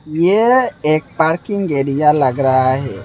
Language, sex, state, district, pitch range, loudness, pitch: Hindi, male, Assam, Hailakandi, 135-175 Hz, -15 LUFS, 155 Hz